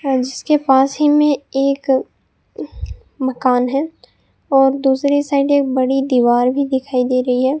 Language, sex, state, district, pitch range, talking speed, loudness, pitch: Hindi, female, Rajasthan, Bikaner, 260-280 Hz, 150 wpm, -16 LUFS, 270 Hz